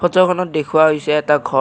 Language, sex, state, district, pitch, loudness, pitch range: Assamese, male, Assam, Kamrup Metropolitan, 155 Hz, -16 LUFS, 150-175 Hz